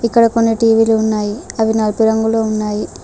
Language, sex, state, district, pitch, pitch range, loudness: Telugu, female, Telangana, Mahabubabad, 220 Hz, 215-225 Hz, -15 LUFS